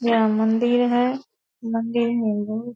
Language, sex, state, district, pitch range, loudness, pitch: Hindi, female, Bihar, Purnia, 220-240 Hz, -21 LUFS, 235 Hz